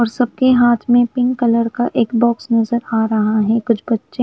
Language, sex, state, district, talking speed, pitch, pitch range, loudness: Hindi, female, Punjab, Fazilka, 200 wpm, 235 Hz, 230-245 Hz, -16 LUFS